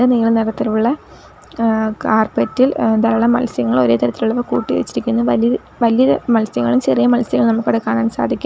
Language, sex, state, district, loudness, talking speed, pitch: Malayalam, female, Kerala, Kollam, -16 LUFS, 135 wpm, 220 Hz